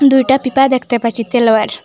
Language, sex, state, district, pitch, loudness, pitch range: Bengali, female, Assam, Hailakandi, 255 Hz, -13 LUFS, 230-270 Hz